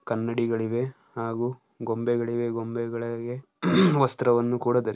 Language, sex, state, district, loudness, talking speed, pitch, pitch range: Kannada, male, Karnataka, Dharwad, -26 LUFS, 85 wpm, 120 Hz, 115-120 Hz